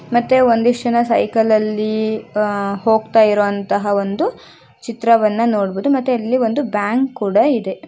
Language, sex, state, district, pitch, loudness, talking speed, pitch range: Kannada, female, Karnataka, Shimoga, 225 Hz, -16 LUFS, 120 wpm, 210-240 Hz